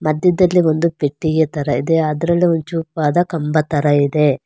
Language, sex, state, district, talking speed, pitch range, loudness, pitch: Kannada, female, Karnataka, Bangalore, 150 wpm, 150-170 Hz, -16 LUFS, 160 Hz